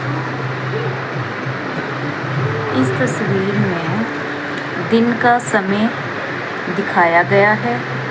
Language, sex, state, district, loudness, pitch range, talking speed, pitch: Hindi, female, Chandigarh, Chandigarh, -17 LUFS, 140-210 Hz, 65 wpm, 170 Hz